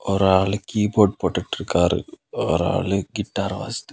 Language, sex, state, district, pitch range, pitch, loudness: Tamil, male, Tamil Nadu, Kanyakumari, 95-105 Hz, 95 Hz, -22 LUFS